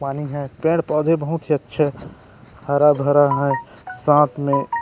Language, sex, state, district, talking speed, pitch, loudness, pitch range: Chhattisgarhi, male, Chhattisgarh, Rajnandgaon, 125 wpm, 145 Hz, -19 LUFS, 140-150 Hz